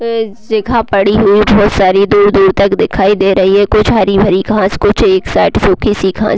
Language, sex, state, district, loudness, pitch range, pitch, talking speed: Hindi, female, Chhattisgarh, Raigarh, -10 LUFS, 195-215 Hz, 205 Hz, 200 wpm